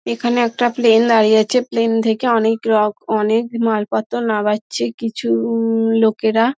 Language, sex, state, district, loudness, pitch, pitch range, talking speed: Bengali, female, West Bengal, Dakshin Dinajpur, -16 LUFS, 225 Hz, 220-230 Hz, 130 wpm